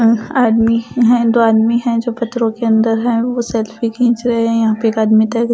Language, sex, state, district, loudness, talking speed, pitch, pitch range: Hindi, female, Punjab, Pathankot, -14 LUFS, 215 wpm, 230 Hz, 225-235 Hz